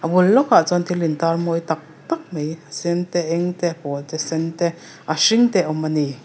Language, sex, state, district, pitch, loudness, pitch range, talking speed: Mizo, female, Mizoram, Aizawl, 165 Hz, -20 LUFS, 155-175 Hz, 260 wpm